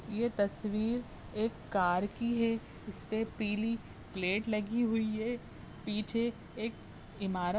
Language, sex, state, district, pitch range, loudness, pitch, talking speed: Hindi, female, Uttar Pradesh, Jyotiba Phule Nagar, 200-230 Hz, -35 LUFS, 215 Hz, 125 wpm